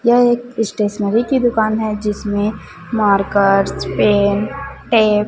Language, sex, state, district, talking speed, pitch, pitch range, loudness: Hindi, female, Chhattisgarh, Raipur, 115 wpm, 215 Hz, 205-235 Hz, -16 LUFS